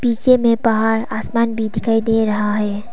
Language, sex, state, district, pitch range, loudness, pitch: Hindi, female, Arunachal Pradesh, Papum Pare, 220-230 Hz, -17 LUFS, 225 Hz